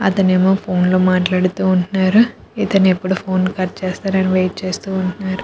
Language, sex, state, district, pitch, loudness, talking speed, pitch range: Telugu, female, Andhra Pradesh, Krishna, 185 Hz, -16 LUFS, 155 wpm, 185-190 Hz